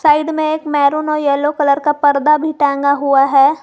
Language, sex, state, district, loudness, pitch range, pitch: Hindi, female, Jharkhand, Garhwa, -14 LUFS, 280-305 Hz, 295 Hz